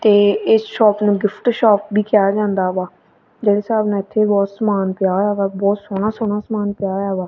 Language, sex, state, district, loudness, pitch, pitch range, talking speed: Punjabi, female, Punjab, Kapurthala, -17 LUFS, 205 Hz, 195-215 Hz, 215 wpm